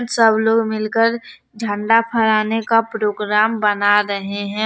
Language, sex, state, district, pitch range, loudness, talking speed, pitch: Hindi, female, Jharkhand, Deoghar, 210-225 Hz, -17 LUFS, 130 wpm, 220 Hz